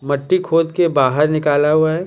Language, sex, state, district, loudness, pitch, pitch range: Hindi, male, Bihar, Patna, -16 LUFS, 155 Hz, 145-165 Hz